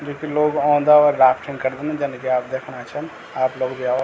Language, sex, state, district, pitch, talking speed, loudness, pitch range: Garhwali, male, Uttarakhand, Tehri Garhwal, 130 Hz, 225 wpm, -19 LUFS, 130-145 Hz